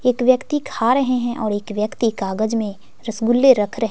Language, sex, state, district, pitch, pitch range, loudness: Hindi, female, Bihar, West Champaran, 230 Hz, 215-255 Hz, -19 LUFS